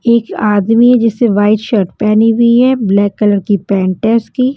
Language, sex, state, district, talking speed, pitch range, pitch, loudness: Hindi, female, Punjab, Kapurthala, 195 wpm, 205-235 Hz, 220 Hz, -11 LUFS